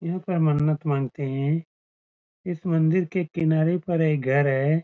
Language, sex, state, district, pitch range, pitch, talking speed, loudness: Hindi, male, Bihar, Saran, 145-170 Hz, 160 Hz, 160 wpm, -24 LUFS